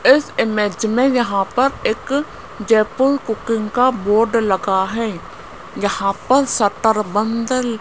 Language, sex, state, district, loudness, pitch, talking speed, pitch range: Hindi, female, Rajasthan, Jaipur, -17 LUFS, 225 Hz, 130 wpm, 205-255 Hz